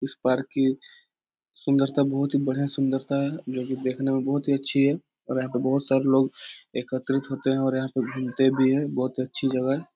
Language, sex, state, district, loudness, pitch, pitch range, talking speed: Hindi, male, Bihar, Jahanabad, -25 LUFS, 135 Hz, 130-140 Hz, 225 wpm